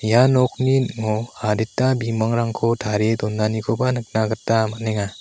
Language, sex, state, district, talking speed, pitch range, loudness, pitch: Garo, male, Meghalaya, South Garo Hills, 115 wpm, 110-120 Hz, -20 LUFS, 110 Hz